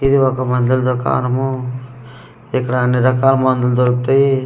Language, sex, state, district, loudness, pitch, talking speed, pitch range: Telugu, male, Andhra Pradesh, Manyam, -16 LUFS, 130 Hz, 120 wpm, 125-130 Hz